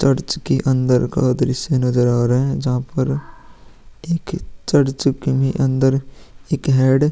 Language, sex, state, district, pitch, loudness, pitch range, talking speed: Hindi, male, Bihar, Vaishali, 130 Hz, -18 LUFS, 125-135 Hz, 160 wpm